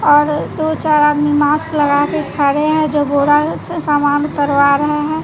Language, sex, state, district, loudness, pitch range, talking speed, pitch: Hindi, female, Bihar, West Champaran, -14 LUFS, 290-310 Hz, 185 wpm, 295 Hz